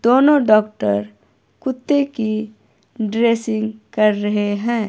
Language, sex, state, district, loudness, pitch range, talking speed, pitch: Hindi, female, Himachal Pradesh, Shimla, -18 LUFS, 210-235 Hz, 100 wpm, 220 Hz